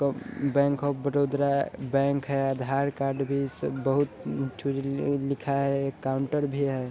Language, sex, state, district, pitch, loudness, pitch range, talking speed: Hindi, male, Bihar, Sitamarhi, 140 Hz, -28 LUFS, 135-140 Hz, 140 wpm